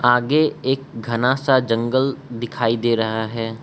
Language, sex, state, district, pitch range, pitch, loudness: Hindi, male, Arunachal Pradesh, Lower Dibang Valley, 115-130 Hz, 120 Hz, -20 LUFS